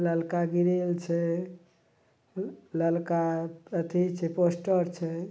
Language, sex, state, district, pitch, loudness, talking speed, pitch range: Maithili, male, Bihar, Madhepura, 170 Hz, -29 LUFS, 90 wpm, 165-180 Hz